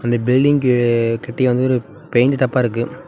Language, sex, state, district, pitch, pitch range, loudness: Tamil, male, Tamil Nadu, Namakkal, 125 Hz, 120-130 Hz, -17 LUFS